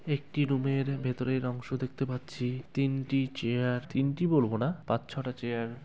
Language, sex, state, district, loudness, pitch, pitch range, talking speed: Bengali, male, West Bengal, Kolkata, -31 LUFS, 130 Hz, 125-140 Hz, 155 wpm